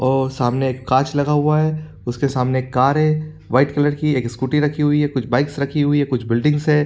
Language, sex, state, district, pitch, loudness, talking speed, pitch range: Hindi, male, Chhattisgarh, Rajnandgaon, 145 Hz, -18 LUFS, 245 wpm, 130-150 Hz